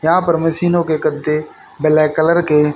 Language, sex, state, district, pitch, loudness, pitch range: Hindi, male, Haryana, Charkhi Dadri, 155 Hz, -15 LUFS, 155-170 Hz